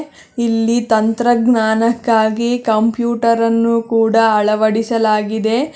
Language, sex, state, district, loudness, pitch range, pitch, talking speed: Kannada, female, Karnataka, Bangalore, -15 LUFS, 220-235 Hz, 230 Hz, 60 wpm